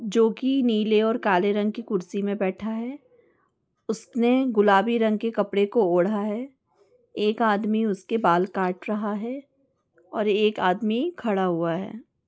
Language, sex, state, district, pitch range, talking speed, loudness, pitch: Hindi, female, Bihar, Muzaffarpur, 200-240 Hz, 155 wpm, -24 LUFS, 215 Hz